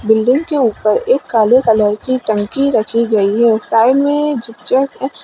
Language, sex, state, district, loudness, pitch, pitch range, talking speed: Hindi, female, Uttar Pradesh, Lalitpur, -14 LUFS, 235 Hz, 220-275 Hz, 150 wpm